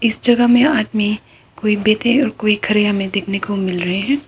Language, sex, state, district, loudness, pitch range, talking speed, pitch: Hindi, female, Arunachal Pradesh, Papum Pare, -16 LUFS, 195-240 Hz, 210 wpm, 210 Hz